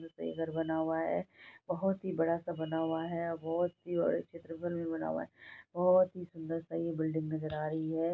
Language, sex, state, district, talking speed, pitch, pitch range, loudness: Hindi, female, Bihar, Saharsa, 230 wpm, 165 Hz, 160-170 Hz, -35 LUFS